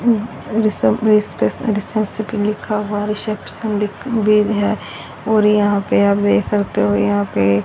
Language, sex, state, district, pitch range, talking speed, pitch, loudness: Hindi, female, Haryana, Rohtak, 195-215 Hz, 125 wpm, 210 Hz, -17 LUFS